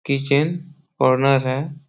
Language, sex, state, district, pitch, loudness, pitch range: Hindi, male, Bihar, Supaul, 140 Hz, -19 LUFS, 135-155 Hz